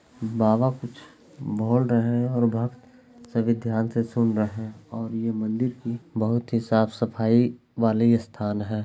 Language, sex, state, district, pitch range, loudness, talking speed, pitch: Hindi, male, Bihar, Lakhisarai, 110-120 Hz, -24 LUFS, 150 wpm, 115 Hz